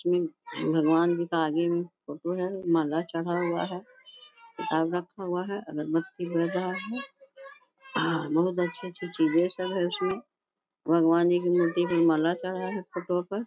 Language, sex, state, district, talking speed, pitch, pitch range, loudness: Hindi, female, Bihar, Bhagalpur, 170 wpm, 180 Hz, 170-195 Hz, -28 LUFS